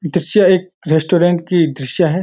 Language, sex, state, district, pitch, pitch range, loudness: Hindi, male, Uttarakhand, Uttarkashi, 175 Hz, 160-180 Hz, -13 LUFS